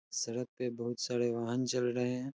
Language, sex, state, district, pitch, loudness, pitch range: Hindi, male, Uttar Pradesh, Hamirpur, 125 Hz, -35 LUFS, 120-125 Hz